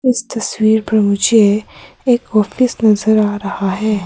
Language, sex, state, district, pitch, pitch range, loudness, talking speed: Hindi, female, Arunachal Pradesh, Papum Pare, 215 Hz, 205-230 Hz, -14 LUFS, 150 wpm